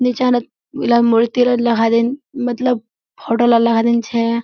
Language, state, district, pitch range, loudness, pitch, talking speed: Surjapuri, Bihar, Kishanganj, 230-245 Hz, -16 LUFS, 235 Hz, 110 wpm